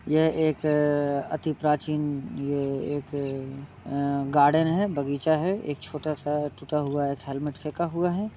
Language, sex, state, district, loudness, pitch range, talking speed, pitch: Hindi, male, Bihar, Muzaffarpur, -27 LUFS, 140-155 Hz, 160 wpm, 145 Hz